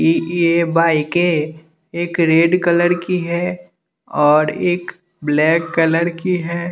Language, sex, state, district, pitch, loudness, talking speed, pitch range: Hindi, male, Bihar, West Champaran, 170 Hz, -16 LUFS, 135 wpm, 160-175 Hz